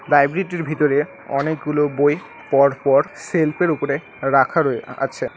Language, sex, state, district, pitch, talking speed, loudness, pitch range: Bengali, male, West Bengal, Alipurduar, 150 Hz, 110 wpm, -19 LUFS, 140-160 Hz